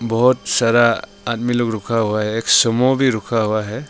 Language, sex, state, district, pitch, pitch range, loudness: Hindi, male, Arunachal Pradesh, Longding, 115 Hz, 110-120 Hz, -17 LUFS